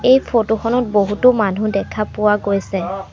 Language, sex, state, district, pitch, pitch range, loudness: Assamese, female, Assam, Sonitpur, 210 Hz, 200-230 Hz, -17 LUFS